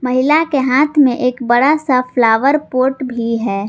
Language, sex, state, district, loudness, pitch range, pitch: Hindi, female, Jharkhand, Garhwa, -14 LUFS, 245-285 Hz, 255 Hz